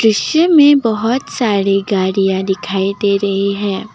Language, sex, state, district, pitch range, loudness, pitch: Hindi, female, Assam, Kamrup Metropolitan, 195-235 Hz, -14 LUFS, 200 Hz